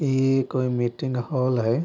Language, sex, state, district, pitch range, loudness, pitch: Bajjika, male, Bihar, Vaishali, 125-135 Hz, -24 LUFS, 130 Hz